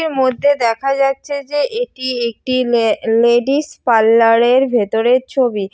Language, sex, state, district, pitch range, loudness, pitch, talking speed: Bengali, female, West Bengal, Jalpaiguri, 230-275 Hz, -15 LUFS, 255 Hz, 135 wpm